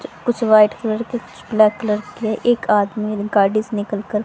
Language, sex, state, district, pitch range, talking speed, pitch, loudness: Hindi, female, Haryana, Rohtak, 210-225 Hz, 185 wpm, 215 Hz, -18 LUFS